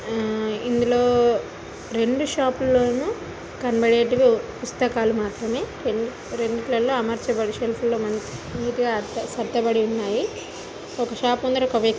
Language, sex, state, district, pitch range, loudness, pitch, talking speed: Telugu, female, Telangana, Nalgonda, 225-245 Hz, -23 LUFS, 235 Hz, 105 wpm